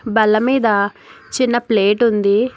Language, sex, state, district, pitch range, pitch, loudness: Telugu, female, Telangana, Hyderabad, 205-240 Hz, 220 Hz, -16 LUFS